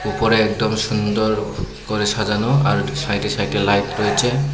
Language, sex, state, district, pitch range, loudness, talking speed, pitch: Bengali, male, Tripura, Unakoti, 105-110 Hz, -19 LUFS, 130 wpm, 110 Hz